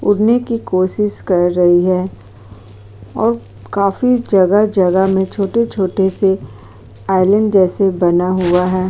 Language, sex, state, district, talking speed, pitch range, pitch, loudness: Hindi, female, Uttar Pradesh, Jyotiba Phule Nagar, 120 wpm, 175-200 Hz, 185 Hz, -14 LUFS